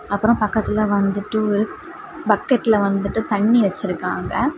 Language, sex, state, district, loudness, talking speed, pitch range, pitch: Tamil, female, Tamil Nadu, Kanyakumari, -19 LUFS, 105 wpm, 205-235 Hz, 215 Hz